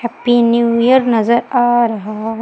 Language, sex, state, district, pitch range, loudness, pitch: Hindi, female, Madhya Pradesh, Umaria, 225-240 Hz, -13 LUFS, 235 Hz